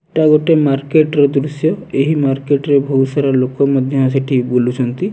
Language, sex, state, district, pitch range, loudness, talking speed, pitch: Odia, male, Odisha, Nuapada, 135-155 Hz, -14 LUFS, 165 wpm, 140 Hz